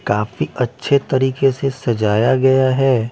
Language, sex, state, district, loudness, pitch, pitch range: Hindi, male, Bihar, Patna, -17 LUFS, 130 Hz, 120-135 Hz